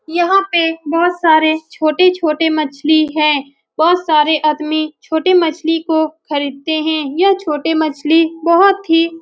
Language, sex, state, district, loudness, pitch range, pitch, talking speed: Hindi, female, Bihar, Saran, -14 LUFS, 310-335 Hz, 320 Hz, 135 wpm